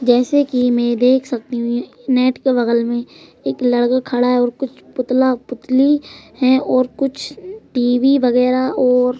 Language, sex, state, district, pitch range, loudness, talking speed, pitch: Hindi, female, Madhya Pradesh, Bhopal, 245-260 Hz, -16 LUFS, 155 wpm, 255 Hz